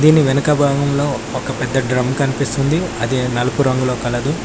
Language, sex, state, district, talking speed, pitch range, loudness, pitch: Telugu, male, Telangana, Mahabubabad, 150 wpm, 125-140 Hz, -17 LUFS, 135 Hz